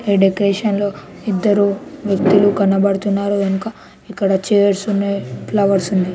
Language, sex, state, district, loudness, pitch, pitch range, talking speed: Telugu, female, Telangana, Nalgonda, -16 LUFS, 200 Hz, 195-205 Hz, 105 wpm